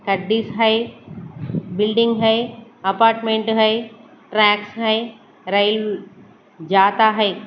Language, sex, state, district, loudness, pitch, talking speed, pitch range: Hindi, female, Maharashtra, Mumbai Suburban, -18 LUFS, 215 Hz, 80 wpm, 200-225 Hz